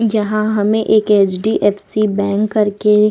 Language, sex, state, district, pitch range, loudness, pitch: Hindi, female, Bihar, Vaishali, 205-215 Hz, -15 LUFS, 210 Hz